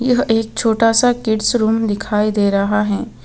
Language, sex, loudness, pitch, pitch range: Hindi, female, -16 LUFS, 220 Hz, 210-230 Hz